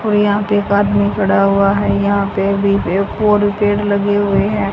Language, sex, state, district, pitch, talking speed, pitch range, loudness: Hindi, female, Haryana, Jhajjar, 200 Hz, 190 wpm, 200-205 Hz, -14 LUFS